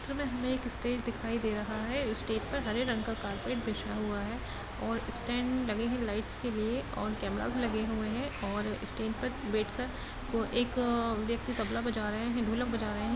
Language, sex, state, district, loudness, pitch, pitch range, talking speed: Hindi, female, Bihar, Gopalganj, -34 LUFS, 230 Hz, 220-245 Hz, 230 wpm